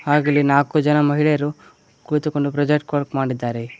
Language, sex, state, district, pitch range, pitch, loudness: Kannada, male, Karnataka, Koppal, 140-150 Hz, 145 Hz, -19 LUFS